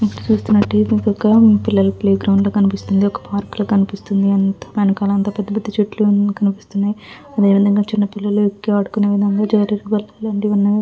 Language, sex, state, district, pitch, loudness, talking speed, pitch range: Telugu, female, Andhra Pradesh, Visakhapatnam, 205 Hz, -16 LUFS, 125 wpm, 200-210 Hz